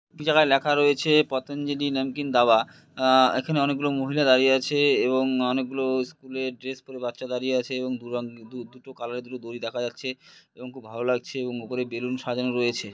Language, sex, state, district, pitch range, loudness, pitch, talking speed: Bengali, male, West Bengal, Purulia, 125-135 Hz, -24 LUFS, 130 Hz, 190 wpm